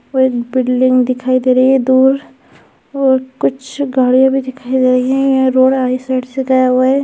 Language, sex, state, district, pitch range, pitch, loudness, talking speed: Hindi, female, Bihar, Jahanabad, 255-265 Hz, 260 Hz, -13 LUFS, 215 wpm